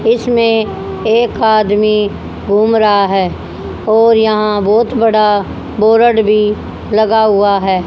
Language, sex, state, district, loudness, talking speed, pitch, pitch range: Hindi, female, Haryana, Rohtak, -12 LUFS, 115 wpm, 215 Hz, 210-225 Hz